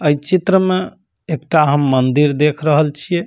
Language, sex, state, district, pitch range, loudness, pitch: Maithili, male, Bihar, Samastipur, 145-175 Hz, -15 LUFS, 150 Hz